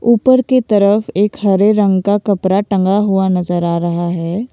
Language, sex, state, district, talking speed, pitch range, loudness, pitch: Hindi, female, Assam, Kamrup Metropolitan, 185 wpm, 185-210 Hz, -14 LUFS, 200 Hz